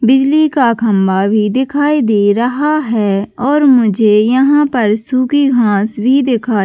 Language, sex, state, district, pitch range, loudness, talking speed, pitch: Hindi, female, Chhattisgarh, Bastar, 215-275 Hz, -12 LUFS, 145 wpm, 245 Hz